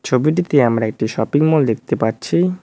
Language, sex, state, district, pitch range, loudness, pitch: Bengali, male, West Bengal, Cooch Behar, 110-155 Hz, -17 LUFS, 130 Hz